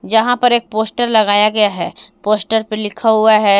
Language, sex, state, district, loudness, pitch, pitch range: Hindi, female, Jharkhand, Palamu, -14 LUFS, 220 Hz, 210-225 Hz